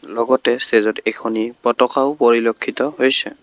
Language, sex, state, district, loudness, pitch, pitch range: Assamese, male, Assam, Kamrup Metropolitan, -17 LUFS, 120 Hz, 115-130 Hz